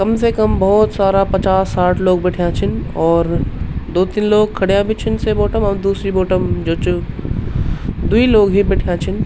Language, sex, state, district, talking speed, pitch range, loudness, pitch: Garhwali, male, Uttarakhand, Tehri Garhwal, 200 wpm, 185-210 Hz, -16 LUFS, 195 Hz